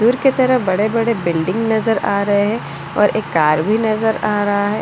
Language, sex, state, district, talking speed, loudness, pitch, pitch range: Hindi, female, Delhi, New Delhi, 210 wpm, -16 LUFS, 215 Hz, 200-225 Hz